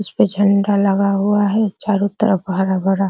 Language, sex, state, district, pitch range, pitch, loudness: Hindi, female, Bihar, Araria, 195-205 Hz, 200 Hz, -17 LUFS